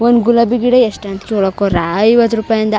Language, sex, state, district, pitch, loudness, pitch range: Kannada, female, Karnataka, Chamarajanagar, 220 Hz, -13 LUFS, 200-235 Hz